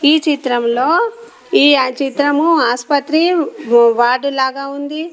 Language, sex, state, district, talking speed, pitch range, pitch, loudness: Telugu, female, Telangana, Komaram Bheem, 95 wpm, 260-315 Hz, 285 Hz, -14 LUFS